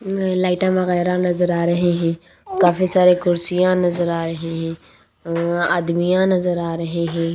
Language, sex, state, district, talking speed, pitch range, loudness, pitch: Hindi, female, Haryana, Rohtak, 165 wpm, 170-180 Hz, -18 LUFS, 175 Hz